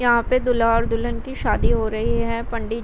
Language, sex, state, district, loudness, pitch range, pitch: Hindi, female, Uttar Pradesh, Varanasi, -21 LUFS, 230-240 Hz, 230 Hz